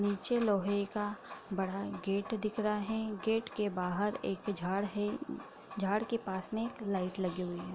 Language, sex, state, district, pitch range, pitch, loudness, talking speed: Hindi, female, Bihar, Darbhanga, 195-215 Hz, 205 Hz, -35 LUFS, 180 wpm